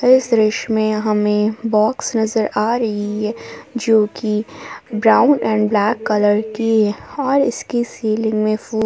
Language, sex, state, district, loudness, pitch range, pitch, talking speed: Hindi, female, Jharkhand, Palamu, -17 LUFS, 215-230 Hz, 220 Hz, 135 wpm